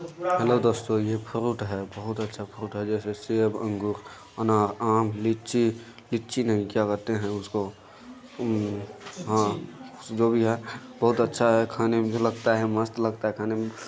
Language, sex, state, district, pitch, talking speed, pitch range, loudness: Hindi, male, Bihar, Jamui, 110 Hz, 140 wpm, 105-115 Hz, -26 LUFS